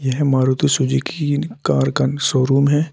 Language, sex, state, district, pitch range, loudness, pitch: Hindi, male, Uttar Pradesh, Saharanpur, 130-145 Hz, -18 LUFS, 135 Hz